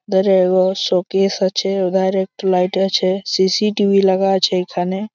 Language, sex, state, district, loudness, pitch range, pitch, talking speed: Bengali, male, West Bengal, Malda, -16 LUFS, 185-195 Hz, 190 Hz, 150 wpm